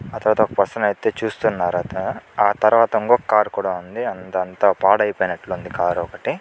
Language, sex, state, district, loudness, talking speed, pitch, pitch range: Telugu, male, Andhra Pradesh, Chittoor, -20 LUFS, 130 wpm, 105 Hz, 95-110 Hz